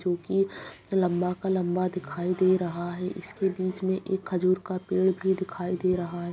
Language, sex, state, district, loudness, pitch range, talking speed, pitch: Hindi, female, Bihar, Bhagalpur, -28 LUFS, 180-190 Hz, 190 wpm, 185 Hz